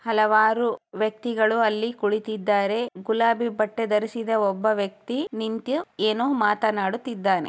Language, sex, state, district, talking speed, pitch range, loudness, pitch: Kannada, female, Karnataka, Chamarajanagar, 95 wpm, 210-230 Hz, -24 LUFS, 220 Hz